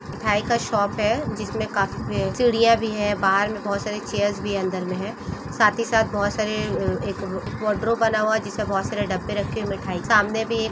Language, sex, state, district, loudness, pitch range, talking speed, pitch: Hindi, female, Jharkhand, Sahebganj, -23 LUFS, 205-225 Hz, 220 wpm, 210 Hz